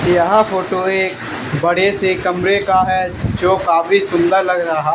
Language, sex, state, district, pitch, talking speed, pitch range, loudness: Hindi, male, Haryana, Charkhi Dadri, 185 Hz, 160 wpm, 175-190 Hz, -15 LUFS